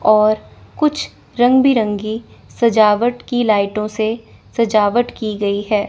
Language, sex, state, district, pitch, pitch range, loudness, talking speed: Hindi, female, Chandigarh, Chandigarh, 220 Hz, 210-240 Hz, -16 LUFS, 120 wpm